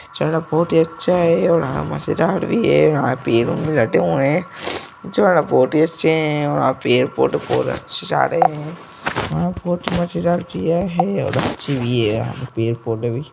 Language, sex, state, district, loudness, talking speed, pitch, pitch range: Hindi, male, Uttar Pradesh, Etah, -18 LUFS, 130 wpm, 160 Hz, 125-170 Hz